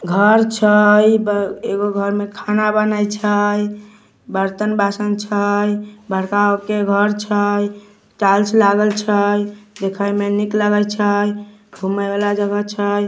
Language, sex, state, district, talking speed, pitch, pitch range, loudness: Magahi, male, Bihar, Samastipur, 125 wpm, 205 Hz, 205-210 Hz, -17 LUFS